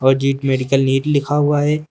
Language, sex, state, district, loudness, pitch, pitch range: Hindi, male, Uttar Pradesh, Lucknow, -17 LUFS, 135 Hz, 135-145 Hz